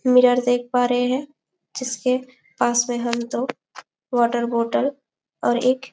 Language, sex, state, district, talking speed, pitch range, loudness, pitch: Hindi, female, Chhattisgarh, Bastar, 130 wpm, 240-255 Hz, -21 LUFS, 250 Hz